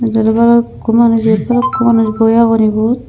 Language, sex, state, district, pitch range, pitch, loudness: Chakma, female, Tripura, Unakoti, 220-235 Hz, 230 Hz, -11 LUFS